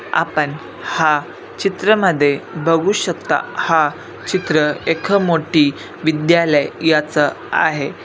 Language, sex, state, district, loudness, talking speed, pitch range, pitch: Marathi, male, Maharashtra, Pune, -17 LUFS, 95 wpm, 155-185 Hz, 165 Hz